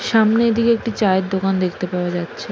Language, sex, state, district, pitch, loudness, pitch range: Bengali, female, West Bengal, Jalpaiguri, 195 Hz, -18 LUFS, 180-230 Hz